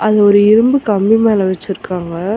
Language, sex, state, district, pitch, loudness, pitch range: Tamil, female, Tamil Nadu, Chennai, 205 Hz, -12 LUFS, 190-220 Hz